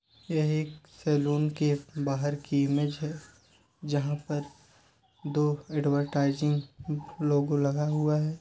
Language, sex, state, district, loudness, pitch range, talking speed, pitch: Hindi, male, Uttar Pradesh, Deoria, -29 LUFS, 140-150 Hz, 115 wpm, 145 Hz